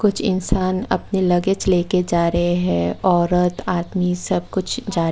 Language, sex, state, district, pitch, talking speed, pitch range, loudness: Hindi, female, Tripura, West Tripura, 180 Hz, 150 wpm, 175-190 Hz, -19 LUFS